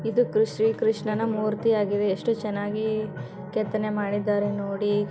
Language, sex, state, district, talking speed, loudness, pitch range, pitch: Kannada, female, Karnataka, Gulbarga, 130 wpm, -26 LUFS, 205-220 Hz, 215 Hz